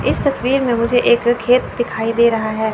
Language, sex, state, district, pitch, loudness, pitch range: Hindi, female, Chandigarh, Chandigarh, 235 Hz, -16 LUFS, 225-245 Hz